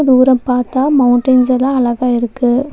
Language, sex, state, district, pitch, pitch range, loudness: Tamil, female, Tamil Nadu, Nilgiris, 255 Hz, 245-265 Hz, -12 LUFS